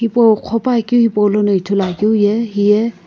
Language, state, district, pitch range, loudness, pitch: Sumi, Nagaland, Kohima, 205-230 Hz, -14 LUFS, 215 Hz